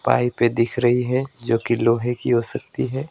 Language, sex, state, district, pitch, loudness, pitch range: Hindi, male, West Bengal, Alipurduar, 120 Hz, -21 LUFS, 115-125 Hz